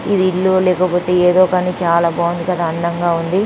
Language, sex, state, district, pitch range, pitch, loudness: Telugu, female, Andhra Pradesh, Anantapur, 170-185 Hz, 180 Hz, -15 LUFS